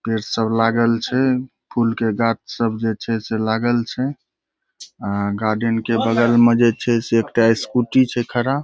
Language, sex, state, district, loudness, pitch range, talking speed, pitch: Maithili, male, Bihar, Saharsa, -19 LUFS, 115-120 Hz, 175 wpm, 115 Hz